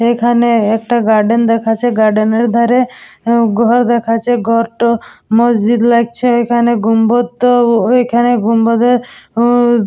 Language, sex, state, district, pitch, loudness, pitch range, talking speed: Bengali, female, West Bengal, Dakshin Dinajpur, 235 Hz, -12 LUFS, 230-240 Hz, 120 wpm